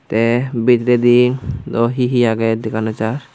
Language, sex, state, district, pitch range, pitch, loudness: Chakma, male, Tripura, Unakoti, 115-125 Hz, 120 Hz, -16 LUFS